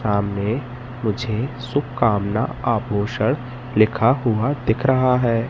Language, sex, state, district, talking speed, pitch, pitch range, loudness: Hindi, male, Madhya Pradesh, Katni, 100 wpm, 120 Hz, 110-125 Hz, -21 LUFS